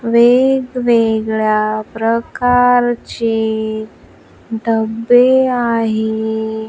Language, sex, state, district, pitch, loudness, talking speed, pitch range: Marathi, female, Maharashtra, Washim, 225 Hz, -14 LUFS, 35 wpm, 220-245 Hz